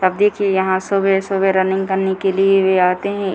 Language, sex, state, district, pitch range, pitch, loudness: Hindi, female, Bihar, Purnia, 190-195 Hz, 195 Hz, -16 LUFS